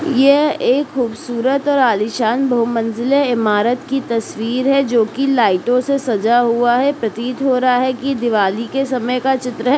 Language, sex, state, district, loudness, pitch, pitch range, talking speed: Hindi, male, Uttar Pradesh, Deoria, -16 LUFS, 250 Hz, 230-270 Hz, 160 wpm